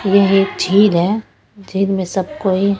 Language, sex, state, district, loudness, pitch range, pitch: Hindi, female, Punjab, Pathankot, -16 LUFS, 190-200 Hz, 195 Hz